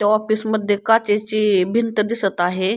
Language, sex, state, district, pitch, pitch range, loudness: Marathi, female, Maharashtra, Pune, 210 Hz, 200-220 Hz, -19 LUFS